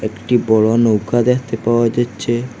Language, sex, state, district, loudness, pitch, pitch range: Bengali, male, Assam, Hailakandi, -16 LUFS, 115 Hz, 110-120 Hz